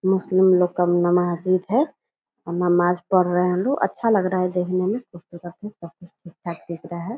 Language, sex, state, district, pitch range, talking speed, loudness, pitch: Hindi, female, Bihar, Purnia, 175-185 Hz, 185 wpm, -21 LUFS, 180 Hz